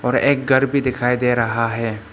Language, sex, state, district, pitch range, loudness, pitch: Hindi, male, Arunachal Pradesh, Papum Pare, 115-130 Hz, -18 LUFS, 125 Hz